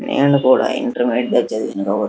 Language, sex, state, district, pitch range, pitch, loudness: Telugu, male, Andhra Pradesh, Guntur, 105-130 Hz, 120 Hz, -17 LUFS